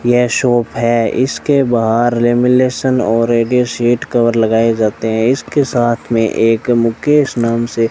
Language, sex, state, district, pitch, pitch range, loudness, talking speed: Hindi, male, Rajasthan, Bikaner, 120 Hz, 115-125 Hz, -13 LUFS, 160 wpm